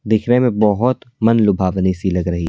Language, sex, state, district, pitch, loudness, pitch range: Hindi, male, Delhi, New Delhi, 105 Hz, -16 LUFS, 95-120 Hz